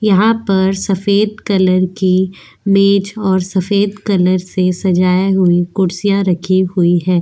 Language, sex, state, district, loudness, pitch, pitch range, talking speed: Hindi, female, Goa, North and South Goa, -14 LUFS, 190 Hz, 185-200 Hz, 135 wpm